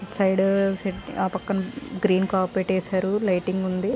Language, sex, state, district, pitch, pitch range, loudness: Telugu, female, Andhra Pradesh, Srikakulam, 190 Hz, 185-195 Hz, -24 LUFS